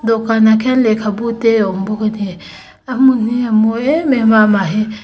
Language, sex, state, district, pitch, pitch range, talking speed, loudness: Mizo, female, Mizoram, Aizawl, 220 Hz, 215-235 Hz, 240 wpm, -13 LUFS